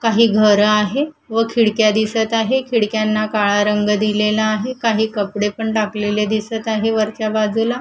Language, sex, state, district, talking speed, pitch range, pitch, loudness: Marathi, female, Maharashtra, Gondia, 155 wpm, 210-225 Hz, 215 Hz, -17 LUFS